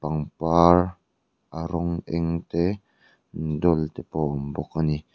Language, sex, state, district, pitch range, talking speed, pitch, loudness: Mizo, male, Mizoram, Aizawl, 75-85 Hz, 140 wpm, 80 Hz, -24 LUFS